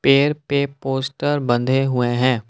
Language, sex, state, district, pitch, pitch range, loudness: Hindi, male, Assam, Kamrup Metropolitan, 135 Hz, 125-140 Hz, -19 LUFS